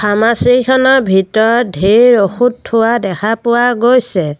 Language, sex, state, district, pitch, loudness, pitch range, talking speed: Assamese, female, Assam, Sonitpur, 230 Hz, -11 LUFS, 205-245 Hz, 120 wpm